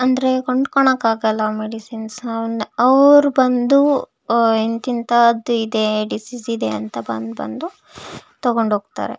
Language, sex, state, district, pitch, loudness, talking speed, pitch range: Kannada, female, Karnataka, Shimoga, 230 Hz, -17 LUFS, 105 wpm, 220-255 Hz